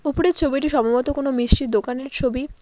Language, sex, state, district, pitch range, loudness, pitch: Bengali, female, West Bengal, Alipurduar, 250-290 Hz, -20 LUFS, 275 Hz